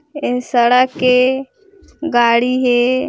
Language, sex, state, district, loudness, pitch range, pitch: Hindi, female, Chhattisgarh, Bilaspur, -14 LUFS, 245-280 Hz, 255 Hz